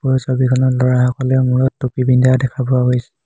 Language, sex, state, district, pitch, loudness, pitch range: Assamese, male, Assam, Hailakandi, 130 Hz, -15 LUFS, 125-130 Hz